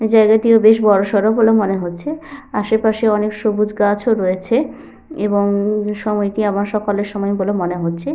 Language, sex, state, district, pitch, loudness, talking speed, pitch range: Bengali, female, Jharkhand, Sahebganj, 210 Hz, -16 LUFS, 155 wpm, 200-220 Hz